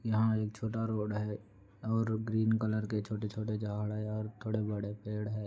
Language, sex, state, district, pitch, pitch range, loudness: Hindi, male, Andhra Pradesh, Anantapur, 110 Hz, 105-110 Hz, -35 LUFS